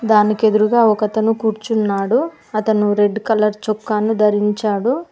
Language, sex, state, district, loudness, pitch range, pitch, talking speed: Telugu, female, Telangana, Mahabubabad, -16 LUFS, 210-220 Hz, 215 Hz, 115 wpm